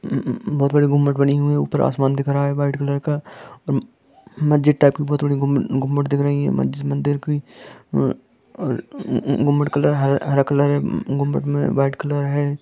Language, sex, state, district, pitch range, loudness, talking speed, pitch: Hindi, male, Jharkhand, Jamtara, 140-145 Hz, -20 LUFS, 210 wpm, 140 Hz